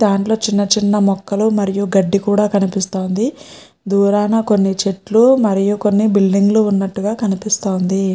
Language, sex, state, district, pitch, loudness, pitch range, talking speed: Telugu, female, Andhra Pradesh, Srikakulam, 200 Hz, -15 LUFS, 195-215 Hz, 125 wpm